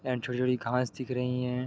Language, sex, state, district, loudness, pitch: Hindi, male, Bihar, Sitamarhi, -31 LUFS, 125 Hz